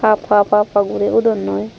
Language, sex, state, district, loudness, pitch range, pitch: Chakma, female, Tripura, Dhalai, -15 LUFS, 200-215 Hz, 205 Hz